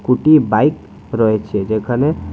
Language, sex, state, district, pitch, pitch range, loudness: Bengali, male, Tripura, West Tripura, 115 Hz, 105-145 Hz, -15 LUFS